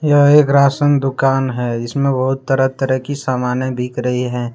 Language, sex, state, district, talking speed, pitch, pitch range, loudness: Hindi, male, Jharkhand, Deoghar, 185 wpm, 135 Hz, 125-140 Hz, -16 LUFS